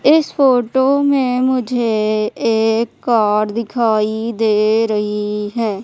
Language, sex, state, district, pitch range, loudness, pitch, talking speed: Hindi, female, Madhya Pradesh, Umaria, 215-250 Hz, -16 LUFS, 225 Hz, 105 wpm